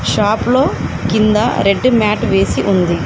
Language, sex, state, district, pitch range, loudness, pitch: Telugu, female, Telangana, Komaram Bheem, 195-215 Hz, -14 LUFS, 210 Hz